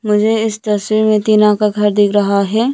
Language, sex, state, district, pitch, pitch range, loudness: Hindi, female, Arunachal Pradesh, Lower Dibang Valley, 210 Hz, 210-215 Hz, -13 LUFS